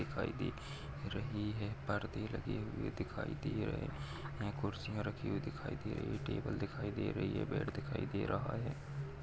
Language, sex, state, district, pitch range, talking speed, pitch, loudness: Hindi, male, Maharashtra, Nagpur, 105-140 Hz, 170 wpm, 110 Hz, -41 LUFS